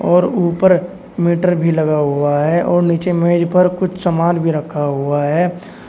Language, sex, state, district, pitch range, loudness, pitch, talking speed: Hindi, male, Uttar Pradesh, Shamli, 155-180 Hz, -15 LUFS, 170 Hz, 175 wpm